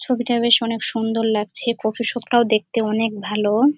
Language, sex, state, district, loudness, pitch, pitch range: Bengali, female, West Bengal, Dakshin Dinajpur, -20 LUFS, 230 Hz, 215-240 Hz